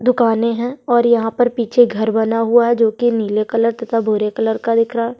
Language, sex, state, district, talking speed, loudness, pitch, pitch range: Hindi, female, Chhattisgarh, Sukma, 240 wpm, -16 LUFS, 230 Hz, 225-240 Hz